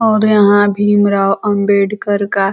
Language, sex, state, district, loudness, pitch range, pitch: Hindi, female, Uttar Pradesh, Ghazipur, -12 LUFS, 200-210 Hz, 205 Hz